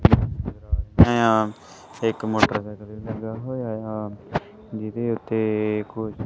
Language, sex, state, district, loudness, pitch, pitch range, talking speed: Punjabi, male, Punjab, Kapurthala, -24 LUFS, 110 Hz, 105-115 Hz, 95 wpm